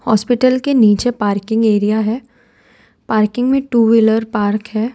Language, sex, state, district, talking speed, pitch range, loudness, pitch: Hindi, female, Gujarat, Valsad, 145 wpm, 215-245 Hz, -14 LUFS, 225 Hz